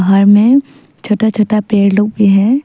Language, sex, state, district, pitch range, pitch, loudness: Hindi, female, Arunachal Pradesh, Papum Pare, 200-220 Hz, 210 Hz, -11 LUFS